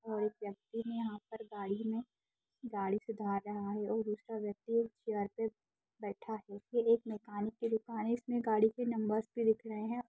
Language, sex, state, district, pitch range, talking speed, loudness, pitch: Hindi, female, Bihar, Jahanabad, 210-230 Hz, 195 wpm, -38 LUFS, 220 Hz